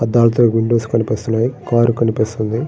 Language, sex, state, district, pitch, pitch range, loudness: Telugu, male, Andhra Pradesh, Srikakulam, 115 Hz, 110-120 Hz, -16 LUFS